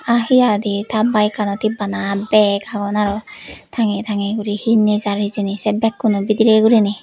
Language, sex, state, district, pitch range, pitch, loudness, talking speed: Chakma, female, Tripura, West Tripura, 205-220 Hz, 210 Hz, -17 LUFS, 180 wpm